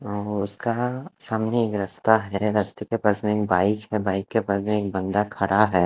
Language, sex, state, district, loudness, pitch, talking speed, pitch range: Hindi, male, Odisha, Khordha, -24 LUFS, 105 Hz, 205 wpm, 100-110 Hz